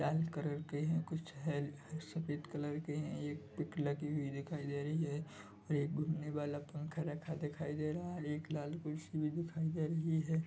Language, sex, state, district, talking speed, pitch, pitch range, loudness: Hindi, male, Chhattisgarh, Bilaspur, 210 wpm, 150 Hz, 145-160 Hz, -41 LUFS